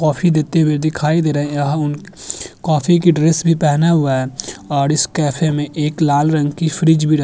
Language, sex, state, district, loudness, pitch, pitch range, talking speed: Hindi, male, Uttar Pradesh, Jyotiba Phule Nagar, -16 LUFS, 155 Hz, 145-160 Hz, 225 wpm